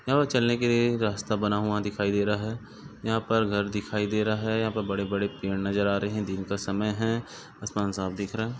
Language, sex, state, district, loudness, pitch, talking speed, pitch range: Hindi, male, Goa, North and South Goa, -28 LUFS, 105 Hz, 260 wpm, 100-110 Hz